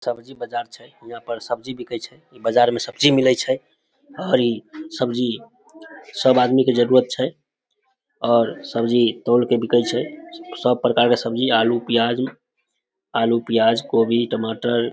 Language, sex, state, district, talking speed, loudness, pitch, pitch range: Maithili, male, Bihar, Samastipur, 155 wpm, -20 LUFS, 120 Hz, 120-135 Hz